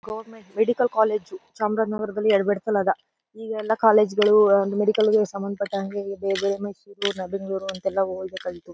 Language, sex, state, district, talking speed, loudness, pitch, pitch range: Kannada, female, Karnataka, Chamarajanagar, 125 wpm, -23 LUFS, 205 Hz, 195-215 Hz